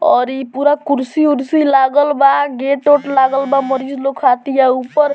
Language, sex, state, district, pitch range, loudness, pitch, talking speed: Bhojpuri, male, Bihar, Muzaffarpur, 265-290 Hz, -14 LUFS, 275 Hz, 175 wpm